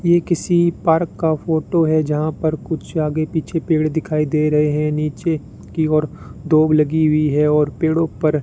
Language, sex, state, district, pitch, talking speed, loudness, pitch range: Hindi, male, Rajasthan, Bikaner, 155 Hz, 190 wpm, -18 LUFS, 150-160 Hz